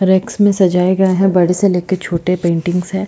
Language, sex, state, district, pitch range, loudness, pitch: Hindi, female, Chhattisgarh, Jashpur, 180-190 Hz, -14 LUFS, 185 Hz